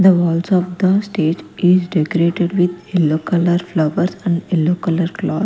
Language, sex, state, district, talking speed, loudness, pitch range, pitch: English, female, Punjab, Kapurthala, 165 wpm, -17 LUFS, 170-185 Hz, 175 Hz